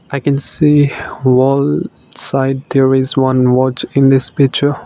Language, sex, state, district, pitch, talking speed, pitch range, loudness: English, male, Nagaland, Dimapur, 135 Hz, 150 wpm, 130-140 Hz, -13 LUFS